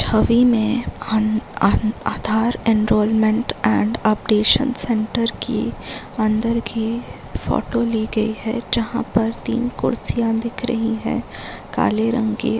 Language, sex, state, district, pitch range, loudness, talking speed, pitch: Hindi, female, Bihar, Gaya, 220-235 Hz, -20 LUFS, 110 wpm, 225 Hz